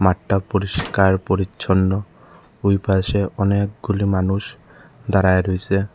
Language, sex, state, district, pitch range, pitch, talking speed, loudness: Bengali, male, Tripura, Unakoti, 95-100 Hz, 95 Hz, 90 wpm, -19 LUFS